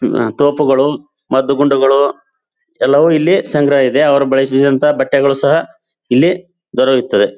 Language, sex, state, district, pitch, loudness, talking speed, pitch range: Kannada, male, Karnataka, Bijapur, 140 Hz, -12 LUFS, 105 wpm, 135-165 Hz